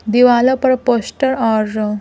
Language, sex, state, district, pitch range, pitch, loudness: Hindi, female, Bihar, Patna, 220-260 Hz, 245 Hz, -14 LUFS